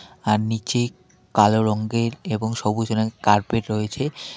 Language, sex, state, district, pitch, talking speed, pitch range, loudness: Bengali, male, West Bengal, Alipurduar, 110 Hz, 135 wpm, 105-115 Hz, -22 LUFS